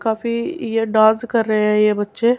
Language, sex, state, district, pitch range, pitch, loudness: Hindi, female, Uttar Pradesh, Muzaffarnagar, 215-235 Hz, 225 Hz, -17 LUFS